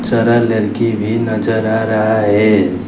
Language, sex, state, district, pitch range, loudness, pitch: Hindi, male, Arunachal Pradesh, Lower Dibang Valley, 105-115 Hz, -14 LUFS, 110 Hz